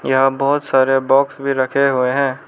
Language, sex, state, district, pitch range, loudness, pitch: Hindi, male, Arunachal Pradesh, Lower Dibang Valley, 130-140 Hz, -16 LUFS, 135 Hz